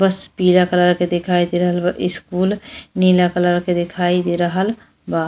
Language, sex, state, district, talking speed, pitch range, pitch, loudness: Bhojpuri, female, Uttar Pradesh, Deoria, 180 wpm, 175-185 Hz, 180 Hz, -17 LUFS